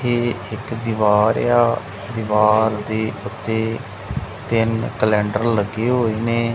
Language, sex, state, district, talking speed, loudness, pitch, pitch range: Punjabi, male, Punjab, Kapurthala, 110 wpm, -20 LUFS, 110 Hz, 105-115 Hz